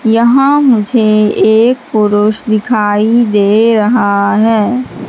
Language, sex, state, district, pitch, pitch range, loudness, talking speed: Hindi, female, Madhya Pradesh, Katni, 220 Hz, 210-240 Hz, -10 LUFS, 95 wpm